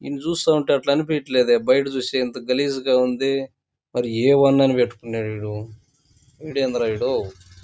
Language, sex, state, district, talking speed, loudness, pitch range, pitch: Telugu, male, Andhra Pradesh, Chittoor, 140 wpm, -21 LUFS, 120-140 Hz, 130 Hz